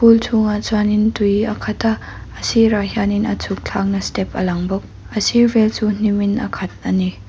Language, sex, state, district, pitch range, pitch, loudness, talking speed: Mizo, female, Mizoram, Aizawl, 195-220 Hz, 210 Hz, -18 LUFS, 245 wpm